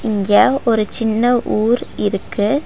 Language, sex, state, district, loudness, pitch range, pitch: Tamil, female, Tamil Nadu, Nilgiris, -16 LUFS, 215-245 Hz, 230 Hz